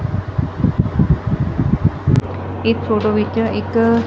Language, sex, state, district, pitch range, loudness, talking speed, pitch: Punjabi, female, Punjab, Fazilka, 100-115 Hz, -18 LUFS, 60 wpm, 110 Hz